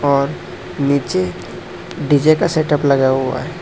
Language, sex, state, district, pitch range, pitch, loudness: Hindi, male, Assam, Hailakandi, 135-155 Hz, 140 Hz, -16 LUFS